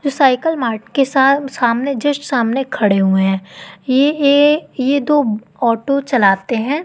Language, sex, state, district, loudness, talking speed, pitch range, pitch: Hindi, female, Madhya Pradesh, Katni, -15 LUFS, 160 wpm, 225-280 Hz, 265 Hz